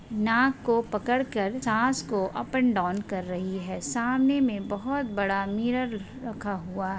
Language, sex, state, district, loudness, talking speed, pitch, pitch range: Hindi, female, Maharashtra, Solapur, -27 LUFS, 165 wpm, 215 Hz, 195-255 Hz